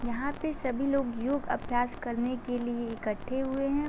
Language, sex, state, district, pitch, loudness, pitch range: Hindi, female, Uttar Pradesh, Gorakhpur, 255 Hz, -32 LUFS, 240-275 Hz